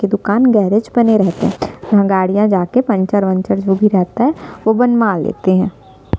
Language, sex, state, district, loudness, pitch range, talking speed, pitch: Hindi, female, Chhattisgarh, Sukma, -14 LUFS, 185-220 Hz, 195 wpm, 205 Hz